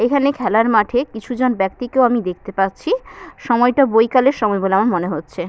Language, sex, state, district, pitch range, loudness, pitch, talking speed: Bengali, female, West Bengal, Purulia, 195-255 Hz, -17 LUFS, 235 Hz, 165 wpm